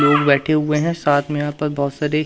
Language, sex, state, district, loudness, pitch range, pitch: Hindi, male, Madhya Pradesh, Umaria, -18 LUFS, 145-150 Hz, 150 Hz